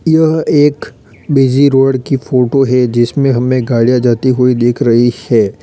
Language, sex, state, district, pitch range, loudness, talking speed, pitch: Hindi, male, Uttar Pradesh, Lalitpur, 120-140 Hz, -11 LUFS, 160 wpm, 130 Hz